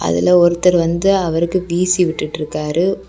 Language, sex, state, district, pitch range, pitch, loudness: Tamil, female, Tamil Nadu, Kanyakumari, 160-180 Hz, 175 Hz, -15 LUFS